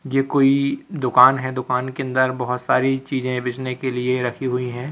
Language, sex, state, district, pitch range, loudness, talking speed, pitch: Hindi, male, Madhya Pradesh, Katni, 125-135 Hz, -20 LUFS, 195 wpm, 130 Hz